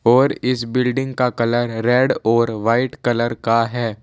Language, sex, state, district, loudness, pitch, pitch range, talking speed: Hindi, male, Uttar Pradesh, Saharanpur, -18 LUFS, 120 Hz, 115-125 Hz, 165 wpm